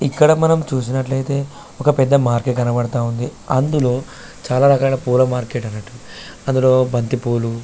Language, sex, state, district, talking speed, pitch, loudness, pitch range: Telugu, male, Telangana, Karimnagar, 140 wpm, 130 Hz, -17 LUFS, 120-135 Hz